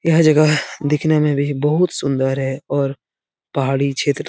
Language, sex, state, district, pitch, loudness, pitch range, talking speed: Hindi, male, Bihar, Lakhisarai, 145 Hz, -18 LUFS, 140-155 Hz, 170 wpm